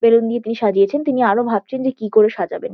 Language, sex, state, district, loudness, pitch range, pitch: Bengali, female, West Bengal, Kolkata, -17 LUFS, 215-260 Hz, 230 Hz